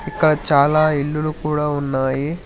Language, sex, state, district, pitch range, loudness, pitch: Telugu, male, Telangana, Hyderabad, 140-155 Hz, -18 LUFS, 150 Hz